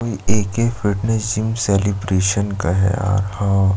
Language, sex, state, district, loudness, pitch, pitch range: Hindi, male, Chhattisgarh, Jashpur, -19 LUFS, 100 Hz, 95-110 Hz